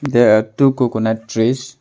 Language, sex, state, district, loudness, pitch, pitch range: English, male, Arunachal Pradesh, Longding, -16 LUFS, 120 Hz, 110-130 Hz